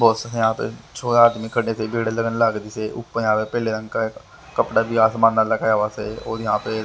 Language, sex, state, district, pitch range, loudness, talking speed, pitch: Hindi, male, Haryana, Rohtak, 110-115 Hz, -21 LUFS, 195 wpm, 115 Hz